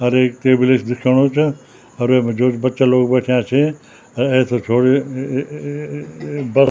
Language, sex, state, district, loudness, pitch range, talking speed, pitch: Garhwali, male, Uttarakhand, Tehri Garhwal, -16 LUFS, 125-135 Hz, 180 wpm, 130 Hz